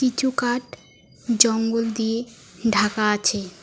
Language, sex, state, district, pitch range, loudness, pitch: Bengali, female, West Bengal, Alipurduar, 210-240 Hz, -21 LUFS, 225 Hz